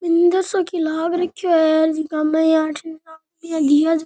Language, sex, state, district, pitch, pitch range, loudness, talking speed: Rajasthani, male, Rajasthan, Nagaur, 320 Hz, 315-340 Hz, -18 LUFS, 120 wpm